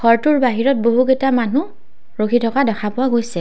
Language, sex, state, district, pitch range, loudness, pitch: Assamese, female, Assam, Kamrup Metropolitan, 230-265 Hz, -17 LUFS, 245 Hz